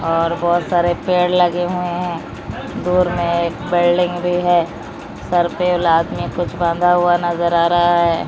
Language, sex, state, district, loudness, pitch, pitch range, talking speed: Hindi, female, Odisha, Malkangiri, -17 LUFS, 175 Hz, 170-180 Hz, 175 wpm